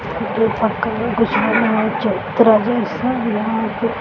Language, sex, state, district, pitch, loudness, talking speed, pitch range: Hindi, female, Bihar, Sitamarhi, 225 Hz, -17 LUFS, 60 wpm, 215-235 Hz